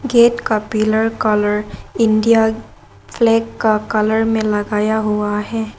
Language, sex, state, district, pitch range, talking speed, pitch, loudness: Hindi, female, Arunachal Pradesh, Lower Dibang Valley, 210-225 Hz, 125 wpm, 215 Hz, -16 LUFS